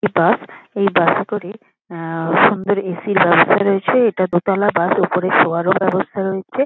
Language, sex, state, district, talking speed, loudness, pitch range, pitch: Bengali, female, West Bengal, Kolkata, 160 wpm, -16 LUFS, 180-200 Hz, 190 Hz